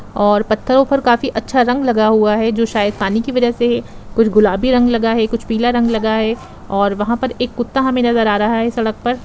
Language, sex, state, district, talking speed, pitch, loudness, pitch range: Hindi, female, Jharkhand, Jamtara, 240 wpm, 230 Hz, -15 LUFS, 215-245 Hz